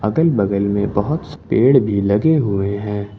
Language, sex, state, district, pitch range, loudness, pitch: Hindi, male, Jharkhand, Ranchi, 100-125 Hz, -17 LUFS, 100 Hz